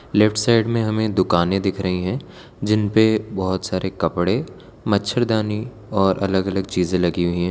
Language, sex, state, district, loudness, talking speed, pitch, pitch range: Hindi, male, Gujarat, Valsad, -20 LUFS, 170 wpm, 95 Hz, 95-110 Hz